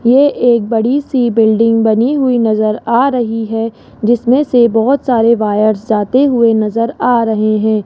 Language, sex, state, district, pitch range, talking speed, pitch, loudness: Hindi, female, Rajasthan, Jaipur, 220-245 Hz, 170 wpm, 230 Hz, -12 LUFS